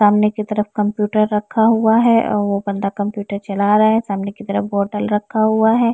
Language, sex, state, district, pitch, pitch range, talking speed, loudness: Hindi, female, Uttar Pradesh, Varanasi, 210 Hz, 205-220 Hz, 210 wpm, -17 LUFS